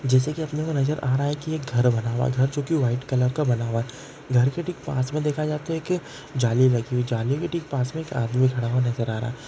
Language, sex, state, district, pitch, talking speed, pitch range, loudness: Hindi, male, Andhra Pradesh, Guntur, 130 Hz, 245 wpm, 125-150 Hz, -24 LUFS